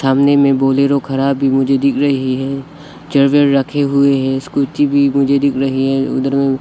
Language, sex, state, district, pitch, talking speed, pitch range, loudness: Hindi, male, Arunachal Pradesh, Lower Dibang Valley, 140 Hz, 210 wpm, 135-140 Hz, -14 LUFS